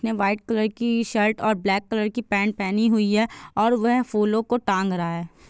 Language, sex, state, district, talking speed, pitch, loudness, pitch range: Hindi, female, Chhattisgarh, Bilaspur, 220 wpm, 215 Hz, -23 LUFS, 200-230 Hz